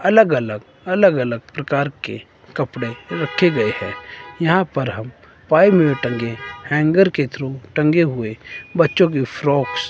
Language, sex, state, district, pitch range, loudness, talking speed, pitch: Hindi, female, Himachal Pradesh, Shimla, 125-165 Hz, -18 LUFS, 150 wpm, 140 Hz